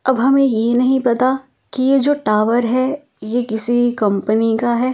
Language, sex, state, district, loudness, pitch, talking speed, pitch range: Hindi, female, Delhi, New Delhi, -16 LUFS, 245 Hz, 195 wpm, 225-265 Hz